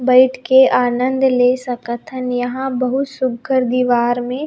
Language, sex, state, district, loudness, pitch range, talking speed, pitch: Chhattisgarhi, female, Chhattisgarh, Rajnandgaon, -16 LUFS, 245-260 Hz, 150 wpm, 255 Hz